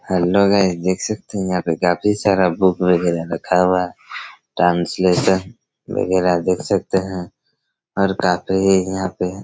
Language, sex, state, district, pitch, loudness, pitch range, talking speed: Hindi, male, Chhattisgarh, Raigarh, 95 Hz, -18 LUFS, 90-95 Hz, 145 wpm